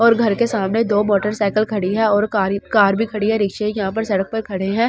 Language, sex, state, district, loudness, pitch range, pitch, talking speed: Hindi, female, Delhi, New Delhi, -18 LUFS, 200-220 Hz, 210 Hz, 280 wpm